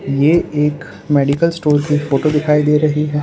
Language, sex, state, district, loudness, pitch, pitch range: Hindi, male, Gujarat, Valsad, -15 LUFS, 150 Hz, 145-150 Hz